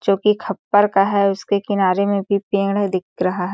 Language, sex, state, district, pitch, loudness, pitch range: Hindi, female, Chhattisgarh, Sarguja, 200 Hz, -18 LUFS, 195-200 Hz